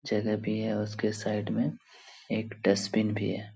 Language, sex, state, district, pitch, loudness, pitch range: Hindi, male, Bihar, Supaul, 105 Hz, -30 LUFS, 105-110 Hz